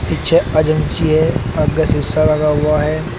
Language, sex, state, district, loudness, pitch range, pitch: Hindi, male, Uttar Pradesh, Shamli, -15 LUFS, 150-155 Hz, 155 Hz